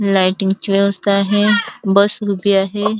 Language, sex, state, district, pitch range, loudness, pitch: Marathi, female, Maharashtra, Dhule, 195-205 Hz, -15 LUFS, 200 Hz